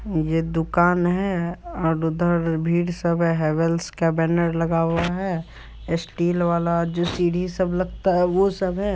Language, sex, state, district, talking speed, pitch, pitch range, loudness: Hindi, male, Bihar, Supaul, 160 wpm, 170 Hz, 165-180 Hz, -22 LUFS